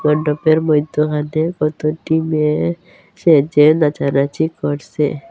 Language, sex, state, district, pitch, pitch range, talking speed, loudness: Bengali, female, Assam, Hailakandi, 150 Hz, 150-160 Hz, 70 wpm, -16 LUFS